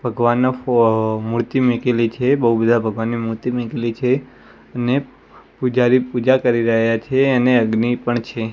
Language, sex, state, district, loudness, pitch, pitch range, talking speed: Gujarati, male, Gujarat, Gandhinagar, -18 LUFS, 120 Hz, 115-125 Hz, 150 wpm